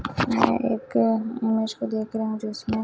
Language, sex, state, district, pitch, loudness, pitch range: Hindi, male, Chhattisgarh, Raipur, 220 Hz, -24 LUFS, 215-225 Hz